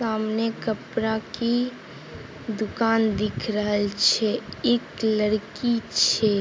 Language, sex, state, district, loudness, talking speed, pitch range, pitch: Maithili, female, Bihar, Begusarai, -24 LUFS, 95 wpm, 215-230 Hz, 220 Hz